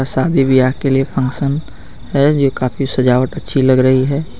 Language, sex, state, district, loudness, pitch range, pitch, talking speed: Hindi, male, Jharkhand, Garhwa, -15 LUFS, 130-140 Hz, 135 Hz, 175 wpm